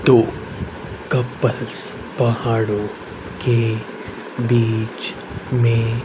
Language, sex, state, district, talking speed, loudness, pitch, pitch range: Hindi, male, Haryana, Rohtak, 60 wpm, -21 LUFS, 115 Hz, 105-120 Hz